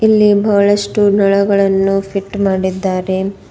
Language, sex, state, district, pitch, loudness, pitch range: Kannada, female, Karnataka, Bidar, 200 Hz, -13 LUFS, 195-205 Hz